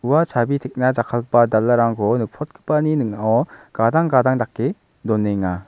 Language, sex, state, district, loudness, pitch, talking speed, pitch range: Garo, male, Meghalaya, South Garo Hills, -19 LUFS, 120 Hz, 115 wpm, 110-130 Hz